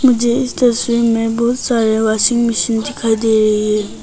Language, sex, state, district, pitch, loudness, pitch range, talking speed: Hindi, female, Arunachal Pradesh, Papum Pare, 230 Hz, -14 LUFS, 220-240 Hz, 180 wpm